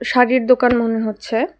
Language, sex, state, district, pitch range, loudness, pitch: Bengali, female, Tripura, West Tripura, 225-255 Hz, -16 LUFS, 245 Hz